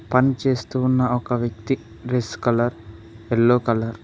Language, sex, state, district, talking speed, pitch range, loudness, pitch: Telugu, male, Telangana, Mahabubabad, 135 wpm, 110-125 Hz, -21 LUFS, 120 Hz